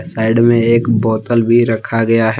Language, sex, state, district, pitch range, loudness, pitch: Hindi, male, Jharkhand, Deoghar, 110-115 Hz, -13 LUFS, 115 Hz